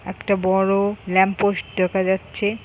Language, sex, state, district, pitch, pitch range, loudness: Bengali, female, West Bengal, Jhargram, 195 Hz, 190-205 Hz, -20 LUFS